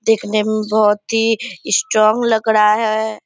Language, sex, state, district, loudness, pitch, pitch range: Hindi, female, Bihar, Purnia, -15 LUFS, 215 Hz, 215-225 Hz